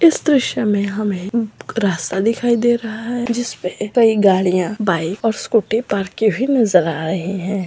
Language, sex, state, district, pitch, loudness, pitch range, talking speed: Hindi, female, Bihar, Sitamarhi, 215 Hz, -18 LUFS, 190-235 Hz, 170 wpm